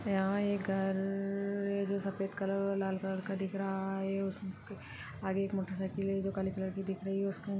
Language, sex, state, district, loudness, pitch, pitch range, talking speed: Hindi, female, Chhattisgarh, Balrampur, -36 LUFS, 195 Hz, 190-195 Hz, 215 wpm